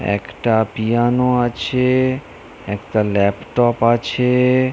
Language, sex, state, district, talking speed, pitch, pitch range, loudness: Bengali, male, West Bengal, North 24 Parganas, 100 wpm, 120 Hz, 110-125 Hz, -17 LUFS